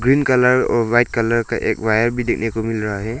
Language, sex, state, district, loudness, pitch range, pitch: Hindi, male, Arunachal Pradesh, Lower Dibang Valley, -18 LUFS, 110-125 Hz, 115 Hz